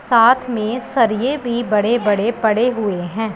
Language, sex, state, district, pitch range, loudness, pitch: Hindi, female, Punjab, Pathankot, 215-240 Hz, -17 LUFS, 225 Hz